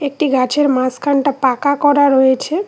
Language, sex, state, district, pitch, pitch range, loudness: Bengali, female, West Bengal, Cooch Behar, 285 Hz, 260-290 Hz, -14 LUFS